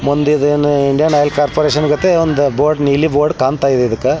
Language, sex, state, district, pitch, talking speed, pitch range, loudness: Kannada, male, Karnataka, Belgaum, 145 Hz, 200 wpm, 140-150 Hz, -13 LUFS